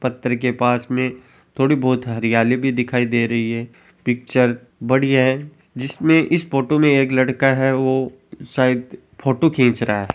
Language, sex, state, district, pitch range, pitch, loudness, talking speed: Hindi, male, Rajasthan, Churu, 125-135 Hz, 130 Hz, -18 LUFS, 165 wpm